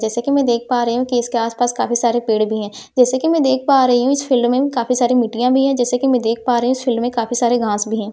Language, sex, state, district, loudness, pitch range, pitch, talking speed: Hindi, female, Delhi, New Delhi, -17 LUFS, 235-255 Hz, 245 Hz, 330 wpm